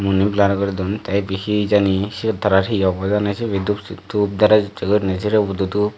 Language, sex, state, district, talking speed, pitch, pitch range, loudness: Chakma, male, Tripura, Dhalai, 220 wpm, 100 Hz, 95-105 Hz, -19 LUFS